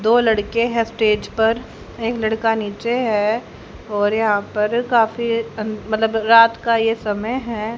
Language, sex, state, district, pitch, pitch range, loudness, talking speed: Hindi, female, Haryana, Rohtak, 225 Hz, 215-230 Hz, -19 LUFS, 145 wpm